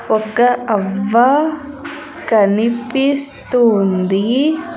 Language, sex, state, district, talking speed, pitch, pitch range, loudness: Telugu, female, Andhra Pradesh, Sri Satya Sai, 50 wpm, 245 Hz, 215-285 Hz, -15 LUFS